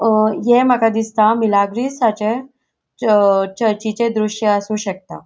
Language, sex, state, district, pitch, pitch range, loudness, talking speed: Konkani, female, Goa, North and South Goa, 220 Hz, 210-235 Hz, -16 LUFS, 115 wpm